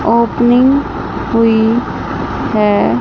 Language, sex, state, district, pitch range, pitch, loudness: Hindi, female, Chandigarh, Chandigarh, 220-245 Hz, 230 Hz, -13 LUFS